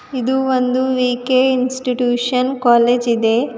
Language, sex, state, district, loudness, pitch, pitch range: Kannada, female, Karnataka, Bidar, -16 LUFS, 250 Hz, 245-260 Hz